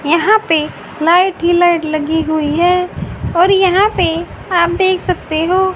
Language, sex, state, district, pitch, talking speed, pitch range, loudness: Hindi, female, Haryana, Rohtak, 345 Hz, 155 wpm, 320-370 Hz, -13 LUFS